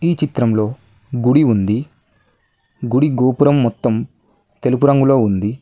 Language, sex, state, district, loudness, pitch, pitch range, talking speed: Telugu, male, Telangana, Mahabubabad, -16 LUFS, 125 Hz, 110-140 Hz, 105 wpm